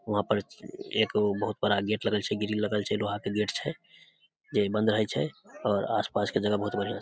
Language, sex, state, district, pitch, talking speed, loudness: Maithili, male, Bihar, Samastipur, 105 Hz, 230 wpm, -29 LUFS